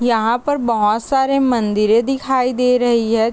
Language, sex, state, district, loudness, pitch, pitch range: Hindi, female, Uttar Pradesh, Deoria, -16 LUFS, 240 Hz, 225-260 Hz